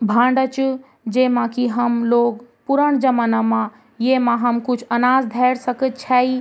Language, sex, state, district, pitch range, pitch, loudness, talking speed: Garhwali, female, Uttarakhand, Tehri Garhwal, 235-260 Hz, 245 Hz, -18 LUFS, 160 wpm